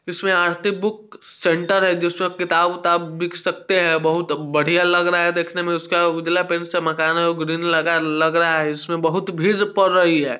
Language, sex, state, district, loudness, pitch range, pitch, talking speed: Hindi, male, Bihar, Sitamarhi, -19 LUFS, 165-180 Hz, 170 Hz, 200 wpm